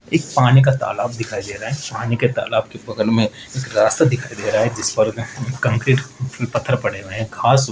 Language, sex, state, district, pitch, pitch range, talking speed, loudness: Hindi, male, Rajasthan, Jaipur, 125 Hz, 110-135 Hz, 215 wpm, -19 LUFS